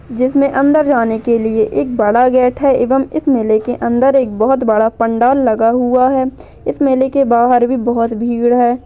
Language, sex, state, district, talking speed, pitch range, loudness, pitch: Hindi, female, Maharashtra, Dhule, 190 wpm, 230-265 Hz, -13 LUFS, 245 Hz